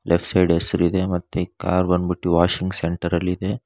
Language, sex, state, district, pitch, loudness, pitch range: Kannada, male, Karnataka, Bangalore, 90 Hz, -21 LUFS, 85-90 Hz